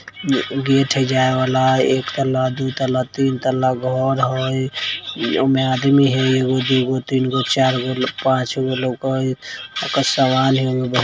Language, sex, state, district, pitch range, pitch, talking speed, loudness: Hindi, female, Bihar, Vaishali, 130-135 Hz, 130 Hz, 175 wpm, -18 LUFS